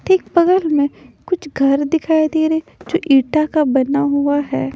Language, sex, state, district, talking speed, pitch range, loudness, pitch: Hindi, female, Punjab, Pathankot, 175 wpm, 280-325 Hz, -16 LUFS, 305 Hz